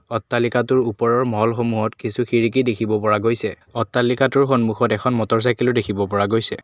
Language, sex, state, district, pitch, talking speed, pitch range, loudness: Assamese, male, Assam, Kamrup Metropolitan, 115 Hz, 145 wpm, 110-125 Hz, -19 LUFS